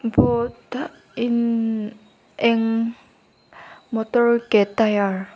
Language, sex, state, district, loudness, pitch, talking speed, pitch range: Mizo, female, Mizoram, Aizawl, -21 LUFS, 230 Hz, 90 wpm, 215-235 Hz